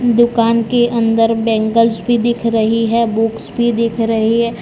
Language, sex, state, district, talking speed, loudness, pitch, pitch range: Hindi, male, Gujarat, Valsad, 170 wpm, -14 LUFS, 230 Hz, 225-235 Hz